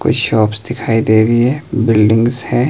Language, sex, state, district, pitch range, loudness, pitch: Hindi, male, Himachal Pradesh, Shimla, 110-120 Hz, -13 LUFS, 115 Hz